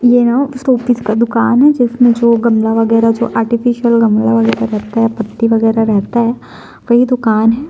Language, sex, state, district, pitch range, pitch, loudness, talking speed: Hindi, female, Chhattisgarh, Sukma, 225-240 Hz, 230 Hz, -12 LUFS, 180 wpm